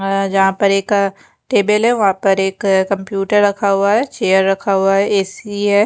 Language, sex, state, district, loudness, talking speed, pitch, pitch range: Hindi, female, Chandigarh, Chandigarh, -15 LUFS, 205 wpm, 195 Hz, 195-205 Hz